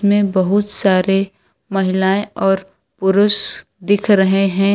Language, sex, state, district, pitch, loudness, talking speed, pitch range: Hindi, female, Uttar Pradesh, Lucknow, 195 Hz, -16 LUFS, 115 wpm, 190-205 Hz